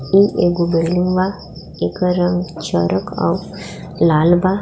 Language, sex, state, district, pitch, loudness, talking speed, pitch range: Bhojpuri, female, Jharkhand, Palamu, 175 Hz, -17 LUFS, 130 wpm, 160-180 Hz